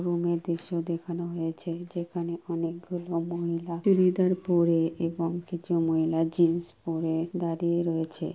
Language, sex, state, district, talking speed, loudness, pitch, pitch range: Bengali, male, West Bengal, Purulia, 120 wpm, -28 LUFS, 170 Hz, 165-175 Hz